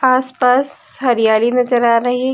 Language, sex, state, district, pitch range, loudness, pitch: Hindi, female, Uttar Pradesh, Lucknow, 240-255 Hz, -14 LUFS, 250 Hz